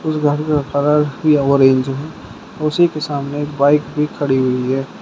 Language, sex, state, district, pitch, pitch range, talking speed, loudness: Hindi, male, Uttar Pradesh, Shamli, 145 Hz, 140-150 Hz, 190 wpm, -16 LUFS